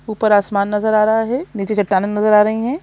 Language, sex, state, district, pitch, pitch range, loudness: Hindi, female, Chhattisgarh, Sukma, 215 Hz, 205-220 Hz, -16 LUFS